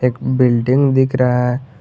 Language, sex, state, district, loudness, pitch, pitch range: Hindi, male, Jharkhand, Garhwa, -15 LUFS, 125 Hz, 125-130 Hz